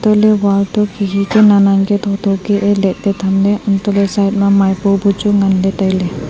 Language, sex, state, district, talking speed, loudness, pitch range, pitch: Wancho, female, Arunachal Pradesh, Longding, 180 wpm, -13 LUFS, 195-205 Hz, 200 Hz